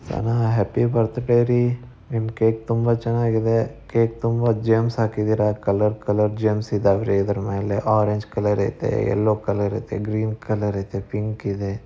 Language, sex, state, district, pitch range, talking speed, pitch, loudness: Kannada, male, Karnataka, Dharwad, 105-115 Hz, 145 wpm, 110 Hz, -22 LUFS